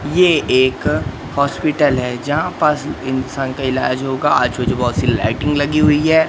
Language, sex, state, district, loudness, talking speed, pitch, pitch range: Hindi, male, Madhya Pradesh, Katni, -16 LUFS, 170 wpm, 135 Hz, 125-150 Hz